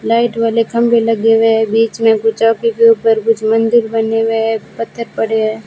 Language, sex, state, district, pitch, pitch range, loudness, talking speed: Hindi, female, Rajasthan, Jaisalmer, 225 Hz, 225-230 Hz, -13 LUFS, 200 wpm